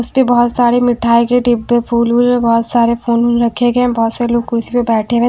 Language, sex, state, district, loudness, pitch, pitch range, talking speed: Hindi, female, Bihar, Kaimur, -13 LUFS, 240 Hz, 235-245 Hz, 250 wpm